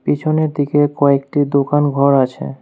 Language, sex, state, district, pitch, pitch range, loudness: Bengali, male, West Bengal, Alipurduar, 145 Hz, 140-145 Hz, -15 LUFS